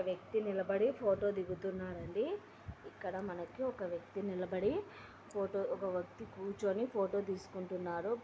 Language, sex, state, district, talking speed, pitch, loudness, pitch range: Telugu, female, Andhra Pradesh, Anantapur, 110 wpm, 195 Hz, -39 LUFS, 185-205 Hz